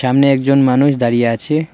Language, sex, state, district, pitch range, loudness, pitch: Bengali, male, West Bengal, Cooch Behar, 125-140 Hz, -13 LUFS, 135 Hz